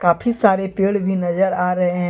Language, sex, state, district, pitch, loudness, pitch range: Hindi, male, Jharkhand, Deoghar, 190 Hz, -18 LUFS, 180-195 Hz